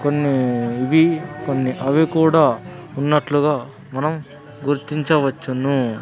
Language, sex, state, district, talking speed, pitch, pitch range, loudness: Telugu, male, Andhra Pradesh, Sri Satya Sai, 80 wpm, 145 Hz, 135-155 Hz, -19 LUFS